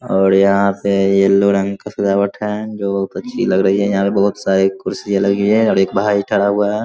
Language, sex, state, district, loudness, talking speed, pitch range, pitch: Hindi, male, Bihar, Vaishali, -15 LUFS, 245 wpm, 95-100 Hz, 100 Hz